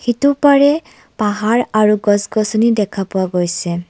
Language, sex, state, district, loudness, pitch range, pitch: Assamese, female, Assam, Kamrup Metropolitan, -15 LUFS, 195-240 Hz, 215 Hz